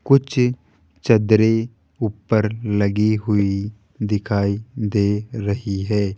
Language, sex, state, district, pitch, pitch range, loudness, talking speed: Hindi, male, Rajasthan, Jaipur, 105 Hz, 100-110 Hz, -20 LUFS, 85 wpm